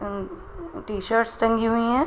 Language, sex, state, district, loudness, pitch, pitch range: Hindi, female, Uttar Pradesh, Budaun, -23 LUFS, 230 Hz, 220-240 Hz